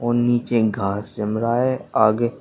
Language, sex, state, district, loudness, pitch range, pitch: Hindi, male, Uttar Pradesh, Shamli, -20 LUFS, 110-120 Hz, 115 Hz